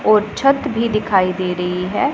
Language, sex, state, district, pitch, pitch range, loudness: Hindi, female, Punjab, Pathankot, 210 Hz, 185-230 Hz, -17 LUFS